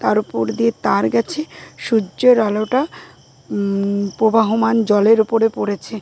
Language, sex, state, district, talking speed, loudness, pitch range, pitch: Bengali, female, West Bengal, Dakshin Dinajpur, 120 wpm, -17 LUFS, 200-225 Hz, 220 Hz